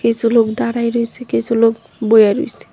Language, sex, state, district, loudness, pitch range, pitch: Bengali, female, Tripura, West Tripura, -15 LUFS, 225-235 Hz, 230 Hz